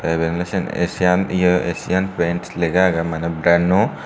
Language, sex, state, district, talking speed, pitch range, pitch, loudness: Chakma, male, Tripura, Dhalai, 135 wpm, 85-90 Hz, 90 Hz, -19 LUFS